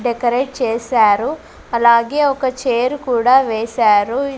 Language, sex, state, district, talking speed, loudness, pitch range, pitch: Telugu, female, Andhra Pradesh, Sri Satya Sai, 95 wpm, -15 LUFS, 235-265 Hz, 245 Hz